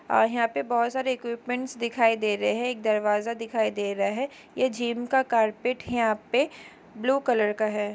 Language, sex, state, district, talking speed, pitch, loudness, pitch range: Hindi, female, Chhattisgarh, Kabirdham, 205 wpm, 235 Hz, -26 LUFS, 215-245 Hz